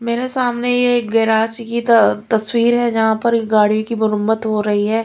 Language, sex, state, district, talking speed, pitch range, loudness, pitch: Hindi, female, Chhattisgarh, Raipur, 215 wpm, 220-235 Hz, -16 LUFS, 225 Hz